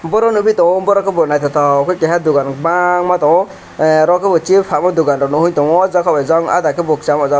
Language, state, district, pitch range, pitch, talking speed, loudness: Kokborok, Tripura, West Tripura, 150-180 Hz, 165 Hz, 225 wpm, -13 LUFS